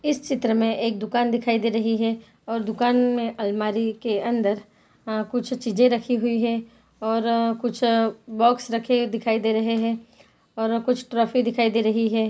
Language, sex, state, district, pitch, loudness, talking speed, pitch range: Hindi, female, Chhattisgarh, Bilaspur, 230 Hz, -23 LUFS, 175 wpm, 225-240 Hz